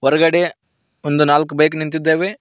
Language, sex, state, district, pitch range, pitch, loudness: Kannada, male, Karnataka, Koppal, 150-165 Hz, 155 Hz, -16 LUFS